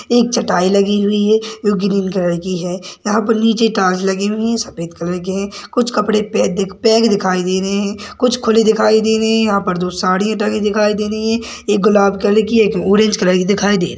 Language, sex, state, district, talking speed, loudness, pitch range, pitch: Hindi, male, Chhattisgarh, Sarguja, 245 wpm, -15 LUFS, 195-220 Hz, 205 Hz